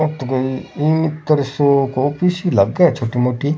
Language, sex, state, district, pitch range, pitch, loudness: Rajasthani, male, Rajasthan, Churu, 130-160 Hz, 145 Hz, -17 LUFS